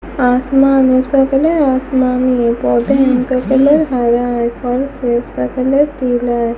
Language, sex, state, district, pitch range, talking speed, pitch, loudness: Hindi, female, Rajasthan, Bikaner, 245-270 Hz, 155 wpm, 255 Hz, -13 LUFS